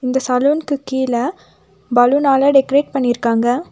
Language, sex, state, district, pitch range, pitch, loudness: Tamil, female, Tamil Nadu, Nilgiris, 245-280 Hz, 265 Hz, -16 LUFS